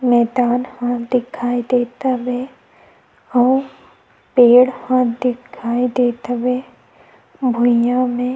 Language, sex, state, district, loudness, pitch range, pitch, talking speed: Chhattisgarhi, female, Chhattisgarh, Sukma, -17 LUFS, 245-255 Hz, 250 Hz, 95 wpm